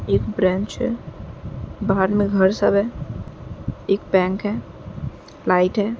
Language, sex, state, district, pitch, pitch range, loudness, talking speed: Hindi, female, Uttar Pradesh, Jyotiba Phule Nagar, 195 Hz, 180-205 Hz, -21 LUFS, 130 wpm